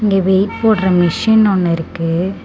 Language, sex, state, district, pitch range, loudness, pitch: Tamil, female, Tamil Nadu, Namakkal, 175-210 Hz, -14 LUFS, 190 Hz